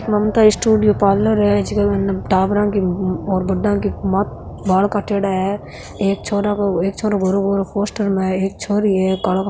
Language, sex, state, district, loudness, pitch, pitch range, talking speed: Marwari, female, Rajasthan, Nagaur, -17 LUFS, 200 Hz, 190-205 Hz, 185 wpm